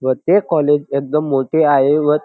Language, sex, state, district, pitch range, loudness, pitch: Marathi, male, Maharashtra, Dhule, 140-150 Hz, -15 LUFS, 150 Hz